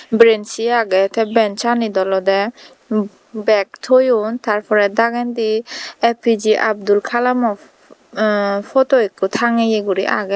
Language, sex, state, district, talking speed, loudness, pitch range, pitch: Chakma, female, Tripura, Dhalai, 115 wpm, -16 LUFS, 205-235 Hz, 220 Hz